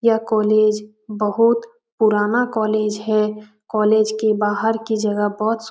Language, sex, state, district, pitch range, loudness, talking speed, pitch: Hindi, female, Bihar, Jamui, 210-225 Hz, -19 LUFS, 145 wpm, 215 Hz